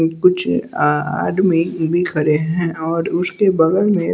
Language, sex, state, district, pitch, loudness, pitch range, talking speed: Hindi, male, Bihar, West Champaran, 165 Hz, -17 LUFS, 160-180 Hz, 160 wpm